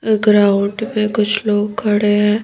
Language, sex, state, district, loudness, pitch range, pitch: Hindi, female, Madhya Pradesh, Bhopal, -15 LUFS, 205-215 Hz, 210 Hz